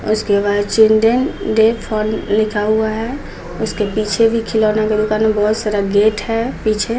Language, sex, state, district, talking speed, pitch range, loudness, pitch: Hindi, female, Bihar, Patna, 145 wpm, 210-225 Hz, -16 LUFS, 215 Hz